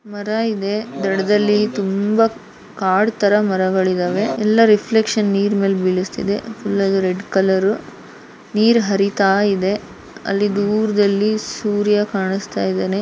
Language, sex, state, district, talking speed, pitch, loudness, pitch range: Kannada, female, Karnataka, Shimoga, 110 wpm, 205 Hz, -17 LUFS, 195-215 Hz